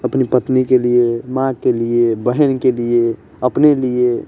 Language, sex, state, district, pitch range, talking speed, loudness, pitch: Hindi, male, Bihar, West Champaran, 120-130 Hz, 180 wpm, -15 LUFS, 125 Hz